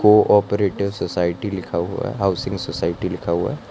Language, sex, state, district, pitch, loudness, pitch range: Hindi, male, Gujarat, Valsad, 100 Hz, -21 LUFS, 85-105 Hz